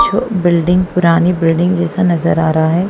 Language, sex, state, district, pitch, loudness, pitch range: Hindi, female, Punjab, Kapurthala, 175 Hz, -13 LUFS, 165-180 Hz